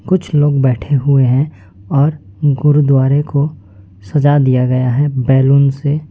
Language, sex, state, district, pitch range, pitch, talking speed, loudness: Hindi, male, West Bengal, Alipurduar, 130-145 Hz, 140 Hz, 135 wpm, -13 LUFS